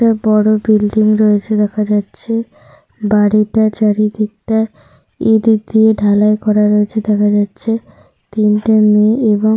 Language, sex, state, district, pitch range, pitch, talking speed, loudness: Bengali, female, Jharkhand, Sahebganj, 210-220 Hz, 215 Hz, 140 wpm, -13 LUFS